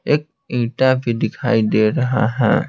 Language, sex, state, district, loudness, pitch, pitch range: Hindi, male, Bihar, Patna, -18 LUFS, 125 Hz, 115-130 Hz